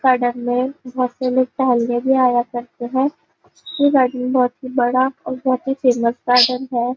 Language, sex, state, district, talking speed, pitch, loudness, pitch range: Hindi, female, Maharashtra, Nagpur, 180 wpm, 250 Hz, -18 LUFS, 245-260 Hz